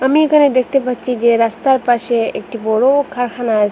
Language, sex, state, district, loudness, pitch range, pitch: Bengali, female, Assam, Hailakandi, -15 LUFS, 230-270 Hz, 245 Hz